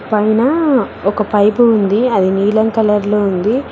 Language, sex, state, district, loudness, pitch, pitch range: Telugu, female, Telangana, Mahabubabad, -13 LUFS, 210 Hz, 205-225 Hz